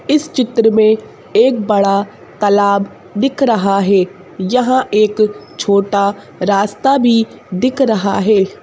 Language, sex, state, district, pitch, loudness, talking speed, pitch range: Hindi, female, Madhya Pradesh, Bhopal, 215 Hz, -14 LUFS, 120 wpm, 200-250 Hz